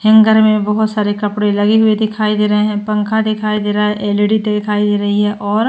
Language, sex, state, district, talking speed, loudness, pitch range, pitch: Hindi, female, Uttar Pradesh, Jyotiba Phule Nagar, 245 wpm, -14 LUFS, 210-215 Hz, 210 Hz